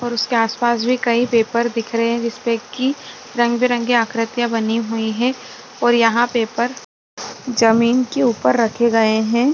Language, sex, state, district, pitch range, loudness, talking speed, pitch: Hindi, female, Chhattisgarh, Rajnandgaon, 230-245 Hz, -18 LUFS, 165 wpm, 235 Hz